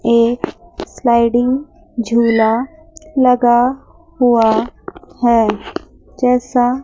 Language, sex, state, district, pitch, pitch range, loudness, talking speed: Hindi, female, Chandigarh, Chandigarh, 245 Hz, 235-265 Hz, -15 LUFS, 60 wpm